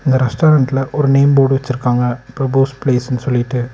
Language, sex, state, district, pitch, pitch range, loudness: Tamil, male, Tamil Nadu, Nilgiris, 130 Hz, 125-135 Hz, -15 LUFS